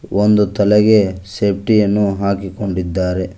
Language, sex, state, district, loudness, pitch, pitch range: Kannada, male, Karnataka, Koppal, -15 LUFS, 100 Hz, 95-105 Hz